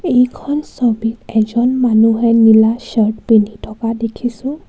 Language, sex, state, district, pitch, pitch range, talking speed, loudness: Assamese, female, Assam, Kamrup Metropolitan, 230 Hz, 220-250 Hz, 115 wpm, -14 LUFS